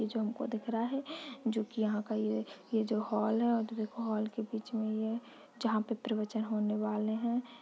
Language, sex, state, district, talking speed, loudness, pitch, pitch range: Hindi, female, Chhattisgarh, Kabirdham, 210 wpm, -35 LUFS, 220 Hz, 215-235 Hz